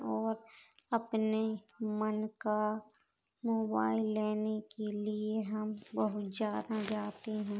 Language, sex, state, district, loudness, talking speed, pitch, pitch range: Hindi, male, Uttar Pradesh, Hamirpur, -36 LUFS, 105 wpm, 215 Hz, 210-220 Hz